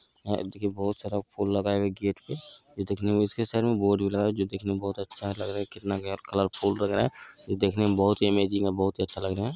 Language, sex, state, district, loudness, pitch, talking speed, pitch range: Bhojpuri, male, Bihar, Saran, -28 LUFS, 100 Hz, 280 wpm, 100-105 Hz